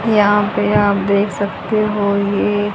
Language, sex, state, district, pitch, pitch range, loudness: Hindi, female, Haryana, Charkhi Dadri, 205 Hz, 200-210 Hz, -16 LUFS